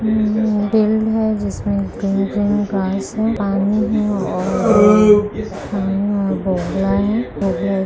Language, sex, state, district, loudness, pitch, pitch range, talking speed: Hindi, female, Bihar, Kishanganj, -17 LUFS, 205 Hz, 195-215 Hz, 90 wpm